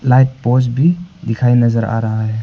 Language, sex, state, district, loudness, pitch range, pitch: Hindi, male, Arunachal Pradesh, Papum Pare, -15 LUFS, 115-130 Hz, 120 Hz